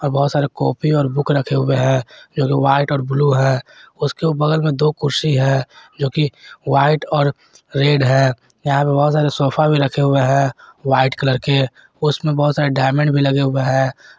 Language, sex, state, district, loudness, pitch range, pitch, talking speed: Hindi, male, Jharkhand, Garhwa, -17 LUFS, 135-145 Hz, 140 Hz, 190 wpm